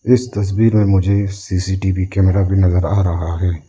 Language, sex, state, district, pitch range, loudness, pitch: Hindi, male, Arunachal Pradesh, Lower Dibang Valley, 90-100 Hz, -16 LUFS, 95 Hz